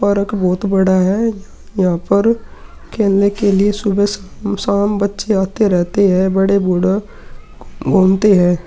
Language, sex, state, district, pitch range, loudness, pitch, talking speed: Hindi, male, Uttar Pradesh, Muzaffarnagar, 190-205 Hz, -15 LUFS, 200 Hz, 130 wpm